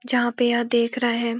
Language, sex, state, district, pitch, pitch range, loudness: Hindi, female, Uttarakhand, Uttarkashi, 240 Hz, 235-245 Hz, -22 LUFS